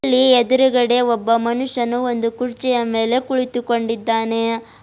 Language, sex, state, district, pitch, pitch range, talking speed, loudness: Kannada, female, Karnataka, Bidar, 240 Hz, 230-255 Hz, 100 wpm, -17 LUFS